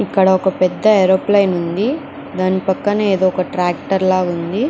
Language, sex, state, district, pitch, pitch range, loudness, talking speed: Telugu, female, Andhra Pradesh, Chittoor, 190 Hz, 185-205 Hz, -16 LUFS, 155 wpm